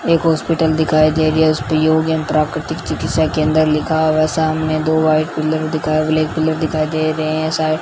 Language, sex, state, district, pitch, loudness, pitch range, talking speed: Hindi, female, Rajasthan, Bikaner, 155 Hz, -16 LUFS, 155-160 Hz, 205 wpm